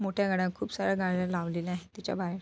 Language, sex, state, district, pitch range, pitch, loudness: Marathi, female, Maharashtra, Sindhudurg, 180-195 Hz, 185 Hz, -31 LUFS